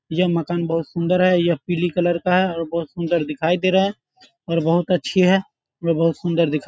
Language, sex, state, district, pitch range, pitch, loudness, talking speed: Hindi, male, Bihar, Bhagalpur, 165-180 Hz, 170 Hz, -20 LUFS, 235 wpm